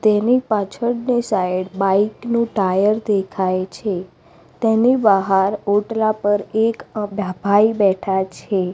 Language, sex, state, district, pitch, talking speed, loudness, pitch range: Gujarati, female, Gujarat, Gandhinagar, 205 Hz, 125 wpm, -18 LUFS, 190-220 Hz